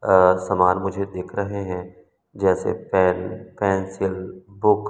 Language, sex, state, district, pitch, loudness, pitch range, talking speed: Hindi, male, Madhya Pradesh, Umaria, 95 Hz, -22 LUFS, 90-100 Hz, 135 wpm